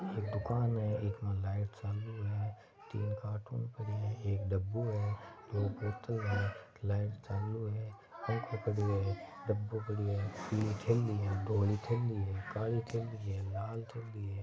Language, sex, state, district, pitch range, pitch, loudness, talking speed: Marwari, male, Rajasthan, Nagaur, 100-110 Hz, 105 Hz, -37 LUFS, 135 wpm